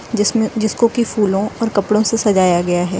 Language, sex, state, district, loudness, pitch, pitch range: Hindi, female, Uttar Pradesh, Lucknow, -16 LUFS, 215 Hz, 195-225 Hz